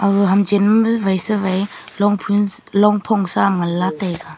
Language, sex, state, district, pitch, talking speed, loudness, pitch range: Wancho, female, Arunachal Pradesh, Longding, 200 Hz, 125 wpm, -17 LUFS, 190-210 Hz